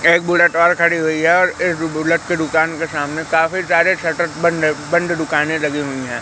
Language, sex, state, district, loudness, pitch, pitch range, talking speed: Hindi, male, Madhya Pradesh, Katni, -16 LUFS, 165 Hz, 155-170 Hz, 220 wpm